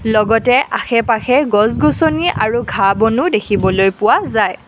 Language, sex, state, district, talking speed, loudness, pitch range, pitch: Assamese, female, Assam, Kamrup Metropolitan, 115 wpm, -14 LUFS, 210-255 Hz, 225 Hz